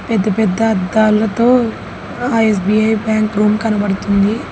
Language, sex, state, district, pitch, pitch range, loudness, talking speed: Telugu, female, Telangana, Hyderabad, 215 Hz, 205-225 Hz, -14 LUFS, 105 wpm